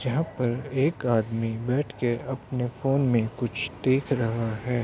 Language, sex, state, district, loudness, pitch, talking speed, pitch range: Hindi, male, Uttar Pradesh, Hamirpur, -27 LUFS, 125 Hz, 160 wpm, 115-135 Hz